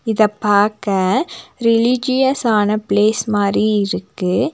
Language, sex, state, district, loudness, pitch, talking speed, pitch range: Tamil, female, Tamil Nadu, Nilgiris, -16 LUFS, 215 Hz, 80 wpm, 205-235 Hz